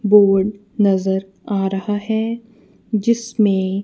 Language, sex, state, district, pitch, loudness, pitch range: Hindi, female, Punjab, Kapurthala, 205 Hz, -18 LUFS, 195-220 Hz